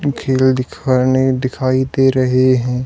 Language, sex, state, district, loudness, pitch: Hindi, male, Haryana, Charkhi Dadri, -15 LUFS, 130 Hz